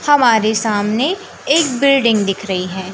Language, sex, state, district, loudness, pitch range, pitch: Hindi, male, Madhya Pradesh, Katni, -15 LUFS, 200-280 Hz, 225 Hz